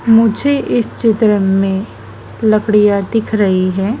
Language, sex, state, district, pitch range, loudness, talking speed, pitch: Hindi, female, Madhya Pradesh, Dhar, 195-225 Hz, -13 LUFS, 120 wpm, 215 Hz